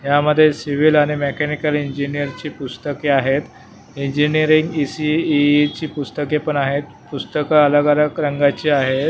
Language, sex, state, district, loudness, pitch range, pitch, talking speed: Marathi, male, Maharashtra, Mumbai Suburban, -18 LUFS, 140-150 Hz, 145 Hz, 125 wpm